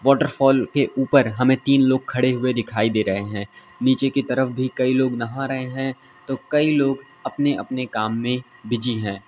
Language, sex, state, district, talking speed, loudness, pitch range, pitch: Hindi, male, Uttar Pradesh, Lalitpur, 200 wpm, -21 LUFS, 120-135 Hz, 130 Hz